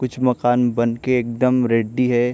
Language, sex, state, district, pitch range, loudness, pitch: Hindi, male, Maharashtra, Chandrapur, 120-125 Hz, -19 LUFS, 125 Hz